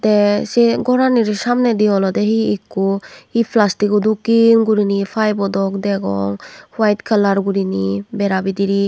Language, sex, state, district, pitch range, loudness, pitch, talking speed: Chakma, female, Tripura, West Tripura, 195-220 Hz, -16 LUFS, 205 Hz, 140 wpm